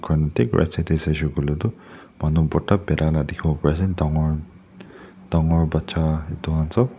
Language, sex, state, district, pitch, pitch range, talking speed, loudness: Nagamese, male, Nagaland, Dimapur, 80 Hz, 75-85 Hz, 165 wpm, -22 LUFS